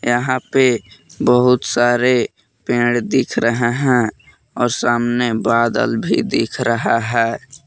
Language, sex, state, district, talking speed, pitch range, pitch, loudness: Hindi, male, Jharkhand, Palamu, 115 wpm, 115-125 Hz, 120 Hz, -17 LUFS